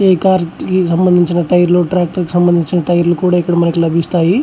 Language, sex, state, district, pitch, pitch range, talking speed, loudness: Telugu, male, Andhra Pradesh, Chittoor, 175 Hz, 170-180 Hz, 190 wpm, -13 LUFS